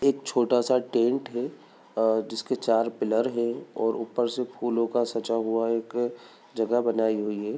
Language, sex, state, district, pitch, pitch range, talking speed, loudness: Bhojpuri, male, Bihar, Saran, 115 Hz, 115-120 Hz, 175 wpm, -27 LUFS